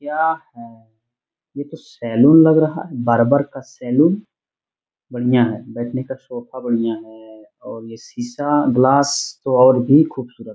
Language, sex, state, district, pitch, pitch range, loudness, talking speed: Hindi, male, Bihar, Jamui, 125 Hz, 115-140 Hz, -16 LUFS, 165 wpm